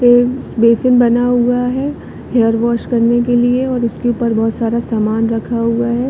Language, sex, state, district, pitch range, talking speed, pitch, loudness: Hindi, female, Chhattisgarh, Bilaspur, 230-245 Hz, 185 wpm, 240 Hz, -14 LUFS